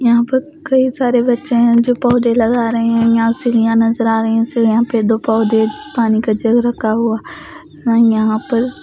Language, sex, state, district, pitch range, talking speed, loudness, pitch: Hindi, female, Bihar, West Champaran, 225-245 Hz, 190 wpm, -14 LUFS, 230 Hz